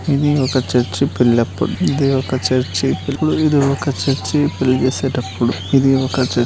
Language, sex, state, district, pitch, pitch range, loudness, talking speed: Telugu, male, Andhra Pradesh, Krishna, 130 Hz, 125-140 Hz, -17 LUFS, 150 wpm